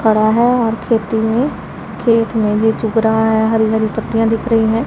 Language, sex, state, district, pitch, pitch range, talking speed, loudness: Hindi, female, Punjab, Pathankot, 225 Hz, 220-230 Hz, 210 wpm, -15 LUFS